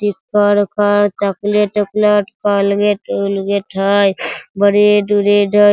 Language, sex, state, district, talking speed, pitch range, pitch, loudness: Hindi, male, Bihar, Sitamarhi, 115 wpm, 200-205 Hz, 205 Hz, -14 LUFS